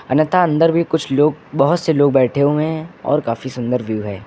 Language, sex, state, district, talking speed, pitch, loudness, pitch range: Hindi, male, Uttar Pradesh, Lucknow, 225 wpm, 150 Hz, -17 LUFS, 130-160 Hz